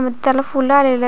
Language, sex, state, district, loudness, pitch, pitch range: Marathi, female, Maharashtra, Pune, -16 LUFS, 265 Hz, 255-275 Hz